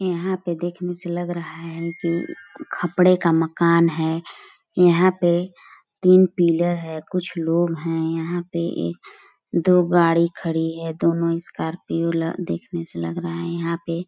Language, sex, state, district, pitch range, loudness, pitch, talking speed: Hindi, female, Chhattisgarh, Balrampur, 165-175 Hz, -21 LUFS, 170 Hz, 160 wpm